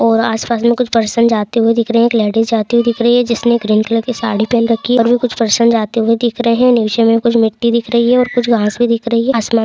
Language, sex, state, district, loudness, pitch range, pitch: Hindi, female, Andhra Pradesh, Chittoor, -13 LUFS, 225-235 Hz, 235 Hz